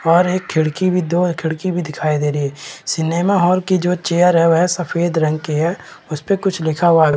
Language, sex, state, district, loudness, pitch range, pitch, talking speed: Hindi, male, Chhattisgarh, Raigarh, -17 LUFS, 160-180 Hz, 170 Hz, 235 wpm